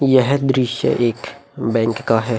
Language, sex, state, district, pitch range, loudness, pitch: Hindi, male, Uttar Pradesh, Muzaffarnagar, 115-130 Hz, -18 LUFS, 120 Hz